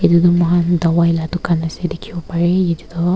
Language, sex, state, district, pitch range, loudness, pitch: Nagamese, female, Nagaland, Kohima, 170-175 Hz, -16 LUFS, 170 Hz